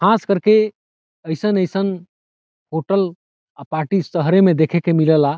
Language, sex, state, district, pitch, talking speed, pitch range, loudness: Bhojpuri, male, Bihar, Saran, 175 Hz, 125 wpm, 155-195 Hz, -17 LUFS